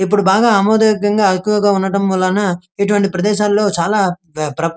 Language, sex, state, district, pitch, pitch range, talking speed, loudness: Telugu, male, Andhra Pradesh, Krishna, 200 Hz, 185-205 Hz, 140 wpm, -14 LUFS